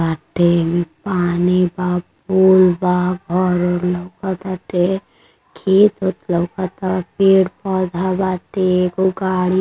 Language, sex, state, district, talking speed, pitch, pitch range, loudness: Bhojpuri, male, Uttar Pradesh, Deoria, 95 wpm, 185 Hz, 180-190 Hz, -17 LUFS